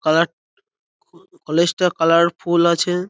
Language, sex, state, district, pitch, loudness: Bengali, male, West Bengal, North 24 Parganas, 175 Hz, -18 LUFS